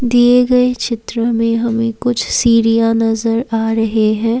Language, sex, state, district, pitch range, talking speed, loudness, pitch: Hindi, female, Assam, Kamrup Metropolitan, 225-240 Hz, 150 wpm, -14 LUFS, 230 Hz